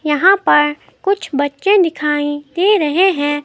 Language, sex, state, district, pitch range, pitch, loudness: Hindi, female, Himachal Pradesh, Shimla, 290-385 Hz, 305 Hz, -15 LUFS